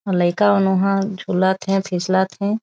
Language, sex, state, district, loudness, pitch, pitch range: Chhattisgarhi, female, Chhattisgarh, Raigarh, -19 LUFS, 195 Hz, 190-195 Hz